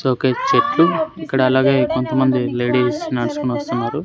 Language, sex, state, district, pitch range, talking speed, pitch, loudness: Telugu, male, Andhra Pradesh, Sri Satya Sai, 125-160 Hz, 120 wpm, 130 Hz, -17 LUFS